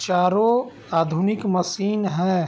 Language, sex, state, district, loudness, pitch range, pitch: Hindi, male, Bihar, Gopalganj, -21 LUFS, 180-210 Hz, 185 Hz